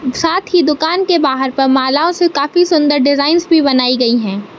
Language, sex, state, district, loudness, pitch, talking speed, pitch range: Hindi, male, Madhya Pradesh, Katni, -12 LUFS, 290 Hz, 195 wpm, 265-340 Hz